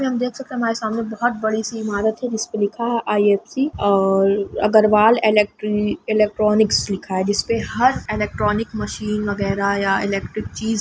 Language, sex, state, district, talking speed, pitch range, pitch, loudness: Hindi, female, Jharkhand, Sahebganj, 170 wpm, 205-225 Hz, 215 Hz, -19 LUFS